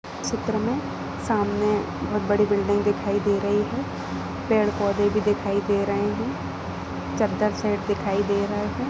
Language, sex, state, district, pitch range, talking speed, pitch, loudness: Hindi, female, Goa, North and South Goa, 200-210 Hz, 170 wpm, 205 Hz, -24 LUFS